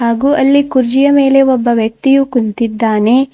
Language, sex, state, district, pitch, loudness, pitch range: Kannada, female, Karnataka, Bidar, 260 Hz, -11 LUFS, 230-275 Hz